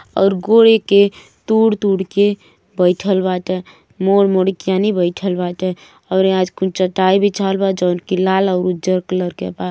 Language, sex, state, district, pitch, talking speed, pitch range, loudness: Bhojpuri, female, Uttar Pradesh, Gorakhpur, 190 Hz, 175 wpm, 185-195 Hz, -16 LUFS